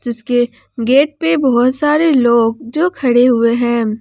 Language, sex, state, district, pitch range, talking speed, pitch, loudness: Hindi, female, Jharkhand, Ranchi, 235-290 Hz, 150 wpm, 245 Hz, -13 LUFS